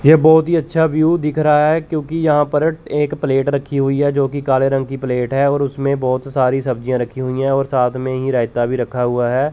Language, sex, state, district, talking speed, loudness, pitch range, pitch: Hindi, male, Chandigarh, Chandigarh, 250 wpm, -16 LUFS, 130-150 Hz, 135 Hz